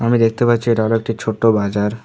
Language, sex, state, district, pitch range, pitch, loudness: Bengali, male, West Bengal, Alipurduar, 110-115 Hz, 115 Hz, -17 LUFS